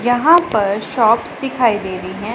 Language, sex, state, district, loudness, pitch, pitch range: Hindi, female, Punjab, Pathankot, -16 LUFS, 225 Hz, 205-245 Hz